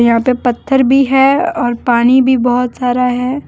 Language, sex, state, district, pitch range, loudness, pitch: Hindi, female, Jharkhand, Deoghar, 245-265 Hz, -12 LUFS, 250 Hz